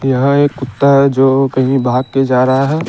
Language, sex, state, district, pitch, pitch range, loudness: Hindi, male, Chandigarh, Chandigarh, 135 Hz, 130-140 Hz, -12 LUFS